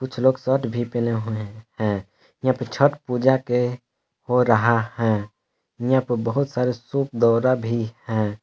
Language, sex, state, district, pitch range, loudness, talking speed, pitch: Hindi, male, Jharkhand, Palamu, 115-130 Hz, -22 LUFS, 165 wpm, 120 Hz